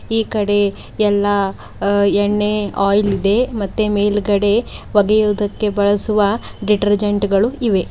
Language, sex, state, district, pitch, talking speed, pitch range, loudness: Kannada, female, Karnataka, Bidar, 205 Hz, 105 wpm, 200-210 Hz, -16 LUFS